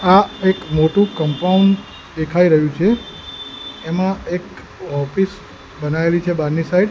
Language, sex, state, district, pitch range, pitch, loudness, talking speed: Gujarati, male, Gujarat, Gandhinagar, 155-195 Hz, 180 Hz, -17 LUFS, 130 wpm